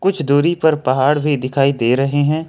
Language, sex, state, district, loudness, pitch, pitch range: Hindi, male, Jharkhand, Ranchi, -16 LUFS, 145 Hz, 135-155 Hz